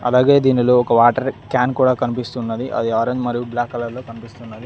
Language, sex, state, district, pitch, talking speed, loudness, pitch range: Telugu, male, Telangana, Mahabubabad, 120 Hz, 165 wpm, -17 LUFS, 115-125 Hz